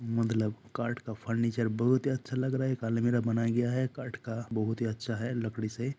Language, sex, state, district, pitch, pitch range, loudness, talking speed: Hindi, male, Jharkhand, Jamtara, 115 Hz, 115-125 Hz, -31 LUFS, 230 wpm